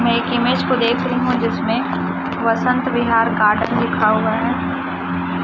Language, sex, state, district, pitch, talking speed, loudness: Hindi, female, Chhattisgarh, Raipur, 220 Hz, 155 wpm, -18 LUFS